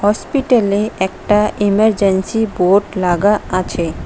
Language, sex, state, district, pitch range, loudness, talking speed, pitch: Bengali, female, West Bengal, Cooch Behar, 190-215 Hz, -15 LUFS, 90 wpm, 205 Hz